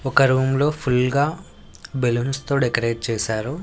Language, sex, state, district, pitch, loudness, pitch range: Telugu, male, Andhra Pradesh, Sri Satya Sai, 130 Hz, -21 LUFS, 120-140 Hz